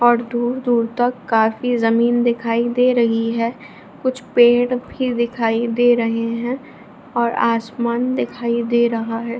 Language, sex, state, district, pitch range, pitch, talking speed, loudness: Hindi, female, Bihar, Jamui, 230-245 Hz, 235 Hz, 140 wpm, -18 LUFS